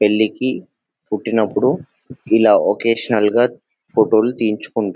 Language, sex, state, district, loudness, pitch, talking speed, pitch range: Telugu, male, Telangana, Nalgonda, -17 LUFS, 110 Hz, 85 wpm, 105-115 Hz